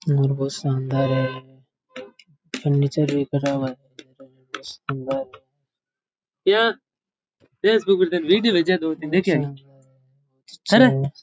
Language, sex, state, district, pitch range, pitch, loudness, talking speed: Rajasthani, male, Rajasthan, Churu, 130-165 Hz, 140 Hz, -21 LUFS, 90 wpm